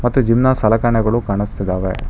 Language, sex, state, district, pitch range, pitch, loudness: Kannada, male, Karnataka, Bangalore, 100-120 Hz, 110 Hz, -16 LUFS